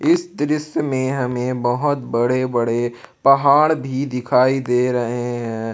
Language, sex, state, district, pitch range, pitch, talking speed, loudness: Hindi, male, Jharkhand, Palamu, 120-140 Hz, 125 Hz, 135 wpm, -19 LUFS